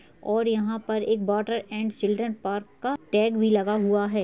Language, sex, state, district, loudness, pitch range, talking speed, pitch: Hindi, female, Uttar Pradesh, Hamirpur, -26 LUFS, 205-225 Hz, 195 wpm, 215 Hz